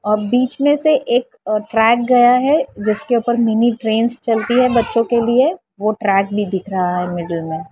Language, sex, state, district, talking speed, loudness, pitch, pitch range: Hindi, female, Maharashtra, Mumbai Suburban, 195 wpm, -16 LUFS, 230 Hz, 210-245 Hz